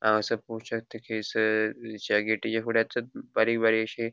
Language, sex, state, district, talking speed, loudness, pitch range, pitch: Konkani, male, Goa, North and South Goa, 160 wpm, -28 LUFS, 110-115 Hz, 110 Hz